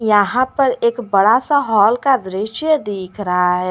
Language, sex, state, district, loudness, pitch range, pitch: Hindi, female, Jharkhand, Garhwa, -16 LUFS, 195-260 Hz, 220 Hz